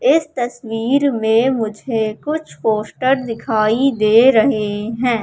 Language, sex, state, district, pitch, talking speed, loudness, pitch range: Hindi, female, Madhya Pradesh, Katni, 230 Hz, 115 wpm, -17 LUFS, 220-265 Hz